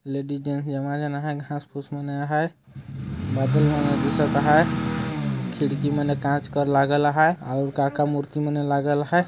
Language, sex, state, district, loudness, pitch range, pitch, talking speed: Hindi, male, Chhattisgarh, Jashpur, -23 LUFS, 140-145 Hz, 145 Hz, 155 wpm